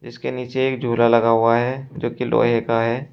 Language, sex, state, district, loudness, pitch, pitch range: Hindi, male, Uttar Pradesh, Shamli, -19 LUFS, 120 Hz, 115-130 Hz